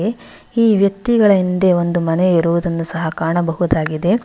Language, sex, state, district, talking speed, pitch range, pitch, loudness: Kannada, female, Karnataka, Bangalore, 115 wpm, 165-200 Hz, 175 Hz, -16 LUFS